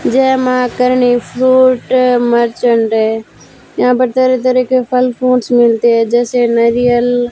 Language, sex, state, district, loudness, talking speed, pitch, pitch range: Hindi, female, Rajasthan, Bikaner, -11 LUFS, 130 wpm, 245 Hz, 240-255 Hz